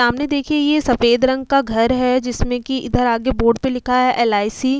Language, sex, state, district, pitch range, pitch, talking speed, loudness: Hindi, female, Uttar Pradesh, Hamirpur, 240-265 Hz, 250 Hz, 225 wpm, -17 LUFS